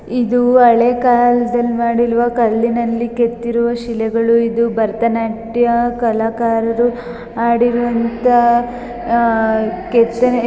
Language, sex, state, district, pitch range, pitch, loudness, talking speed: Kannada, female, Karnataka, Gulbarga, 230-240 Hz, 235 Hz, -15 LUFS, 65 wpm